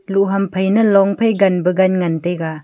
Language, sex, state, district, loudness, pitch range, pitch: Wancho, female, Arunachal Pradesh, Longding, -15 LUFS, 180-195 Hz, 190 Hz